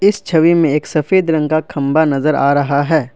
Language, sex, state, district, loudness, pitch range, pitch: Hindi, male, Assam, Kamrup Metropolitan, -14 LUFS, 145-165 Hz, 155 Hz